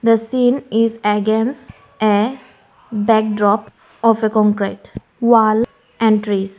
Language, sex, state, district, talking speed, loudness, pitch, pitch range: English, female, Arunachal Pradesh, Lower Dibang Valley, 110 wpm, -16 LUFS, 220 Hz, 210-230 Hz